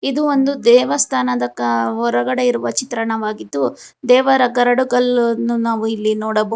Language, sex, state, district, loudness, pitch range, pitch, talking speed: Kannada, female, Karnataka, Bangalore, -16 LUFS, 215-255 Hz, 235 Hz, 130 wpm